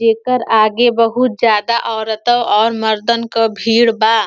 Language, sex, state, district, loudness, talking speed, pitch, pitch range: Bhojpuri, female, Uttar Pradesh, Ghazipur, -14 LUFS, 140 wpm, 225 Hz, 220-235 Hz